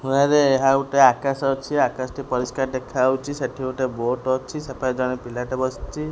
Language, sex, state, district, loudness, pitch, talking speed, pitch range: Odia, female, Odisha, Khordha, -22 LUFS, 130 Hz, 135 wpm, 130-135 Hz